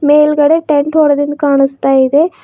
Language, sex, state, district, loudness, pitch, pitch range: Kannada, female, Karnataka, Bidar, -11 LUFS, 290 Hz, 280-300 Hz